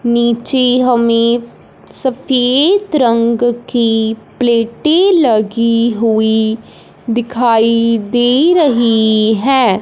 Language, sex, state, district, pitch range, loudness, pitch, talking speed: Hindi, male, Punjab, Fazilka, 230-255 Hz, -12 LUFS, 235 Hz, 75 wpm